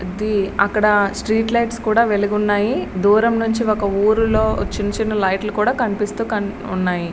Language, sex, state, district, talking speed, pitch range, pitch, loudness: Telugu, female, Andhra Pradesh, Srikakulam, 145 wpm, 200-220 Hz, 210 Hz, -18 LUFS